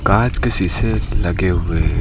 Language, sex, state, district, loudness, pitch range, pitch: Hindi, male, Uttar Pradesh, Lucknow, -18 LUFS, 85-110 Hz, 100 Hz